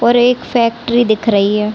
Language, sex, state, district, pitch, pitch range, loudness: Hindi, female, Chhattisgarh, Raigarh, 230 Hz, 215-240 Hz, -13 LUFS